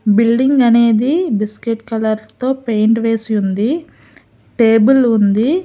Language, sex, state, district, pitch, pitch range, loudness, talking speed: Telugu, female, Telangana, Hyderabad, 225 Hz, 215-255 Hz, -14 LUFS, 105 wpm